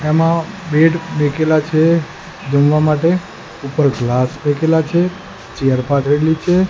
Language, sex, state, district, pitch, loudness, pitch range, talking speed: Gujarati, male, Gujarat, Gandhinagar, 155 Hz, -15 LUFS, 145-165 Hz, 105 wpm